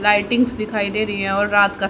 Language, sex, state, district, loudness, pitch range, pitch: Hindi, female, Haryana, Rohtak, -18 LUFS, 200-215 Hz, 205 Hz